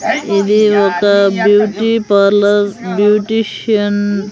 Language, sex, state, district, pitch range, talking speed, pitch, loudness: Telugu, female, Andhra Pradesh, Sri Satya Sai, 200-215 Hz, 85 wpm, 205 Hz, -12 LUFS